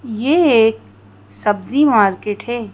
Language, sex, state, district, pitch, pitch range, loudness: Hindi, female, Madhya Pradesh, Bhopal, 210 Hz, 170-240 Hz, -15 LUFS